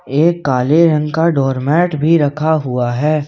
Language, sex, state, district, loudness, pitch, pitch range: Hindi, male, Jharkhand, Ranchi, -14 LUFS, 150 Hz, 135-160 Hz